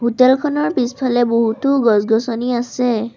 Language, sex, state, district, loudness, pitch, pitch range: Assamese, female, Assam, Sonitpur, -16 LUFS, 245 Hz, 230-255 Hz